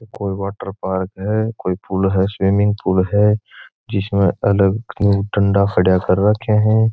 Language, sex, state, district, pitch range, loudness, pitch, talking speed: Marwari, male, Rajasthan, Churu, 95-105 Hz, -17 LUFS, 100 Hz, 145 wpm